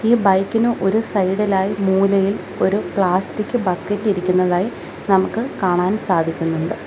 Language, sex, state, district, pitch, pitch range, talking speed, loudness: Malayalam, female, Kerala, Kollam, 195 Hz, 185-210 Hz, 105 wpm, -18 LUFS